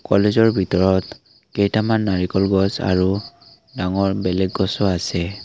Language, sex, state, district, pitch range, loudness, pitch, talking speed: Assamese, male, Assam, Kamrup Metropolitan, 95-105 Hz, -19 LUFS, 95 Hz, 110 wpm